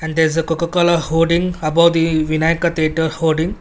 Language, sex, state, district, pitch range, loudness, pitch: English, male, Karnataka, Bangalore, 160-170 Hz, -16 LUFS, 165 Hz